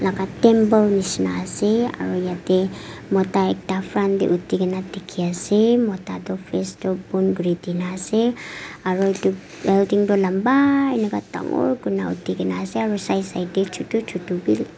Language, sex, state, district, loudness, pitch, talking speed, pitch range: Nagamese, female, Nagaland, Kohima, -21 LUFS, 190 Hz, 160 wpm, 180-205 Hz